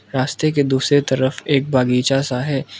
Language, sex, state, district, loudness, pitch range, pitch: Hindi, male, Arunachal Pradesh, Lower Dibang Valley, -18 LUFS, 130-145 Hz, 135 Hz